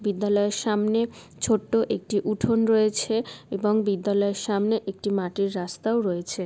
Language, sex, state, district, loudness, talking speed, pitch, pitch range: Bengali, female, West Bengal, Malda, -25 LUFS, 120 wpm, 205 Hz, 200-220 Hz